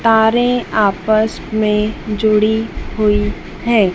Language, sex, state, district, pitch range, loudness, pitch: Hindi, female, Madhya Pradesh, Dhar, 210-220 Hz, -16 LUFS, 215 Hz